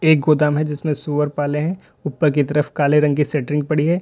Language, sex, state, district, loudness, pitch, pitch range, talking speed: Hindi, male, Uttar Pradesh, Lalitpur, -19 LUFS, 150 Hz, 145-155 Hz, 255 wpm